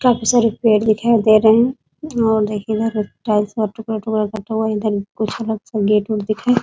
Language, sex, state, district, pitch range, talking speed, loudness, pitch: Hindi, female, Bihar, Muzaffarpur, 215-230 Hz, 235 wpm, -17 LUFS, 220 Hz